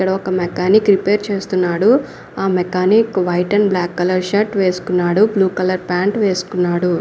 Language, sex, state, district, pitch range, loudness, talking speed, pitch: Telugu, female, Andhra Pradesh, Anantapur, 180-205 Hz, -16 LUFS, 145 wpm, 185 Hz